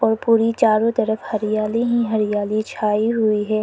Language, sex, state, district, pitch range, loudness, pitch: Hindi, female, Arunachal Pradesh, Lower Dibang Valley, 215-230 Hz, -19 LUFS, 215 Hz